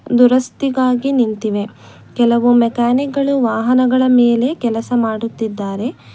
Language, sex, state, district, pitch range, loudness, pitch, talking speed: Kannada, female, Karnataka, Bangalore, 225-255 Hz, -15 LUFS, 240 Hz, 95 wpm